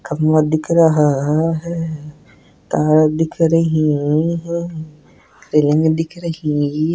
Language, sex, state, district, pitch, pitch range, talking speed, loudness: Hindi, male, Rajasthan, Nagaur, 155 Hz, 150-165 Hz, 110 wpm, -16 LUFS